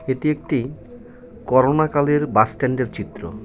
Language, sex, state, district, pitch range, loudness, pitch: Bengali, male, West Bengal, Cooch Behar, 120-155 Hz, -19 LUFS, 135 Hz